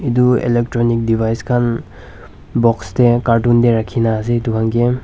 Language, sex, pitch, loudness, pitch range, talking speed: Nagamese, male, 120 Hz, -15 LUFS, 115-120 Hz, 155 wpm